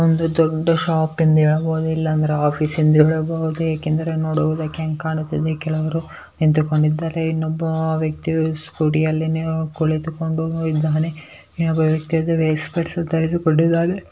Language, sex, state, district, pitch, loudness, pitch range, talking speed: Kannada, male, Karnataka, Bellary, 160 Hz, -20 LUFS, 155-160 Hz, 120 wpm